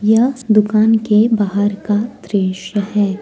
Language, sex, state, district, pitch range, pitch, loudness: Hindi, female, Jharkhand, Deoghar, 205-220 Hz, 210 Hz, -15 LUFS